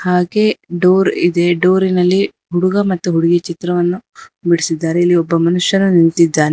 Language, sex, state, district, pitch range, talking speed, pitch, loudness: Kannada, female, Karnataka, Bangalore, 170-185 Hz, 130 wpm, 175 Hz, -14 LUFS